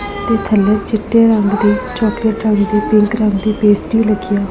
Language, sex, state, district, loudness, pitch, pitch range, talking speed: Punjabi, female, Punjab, Pathankot, -14 LUFS, 215 Hz, 205-220 Hz, 185 wpm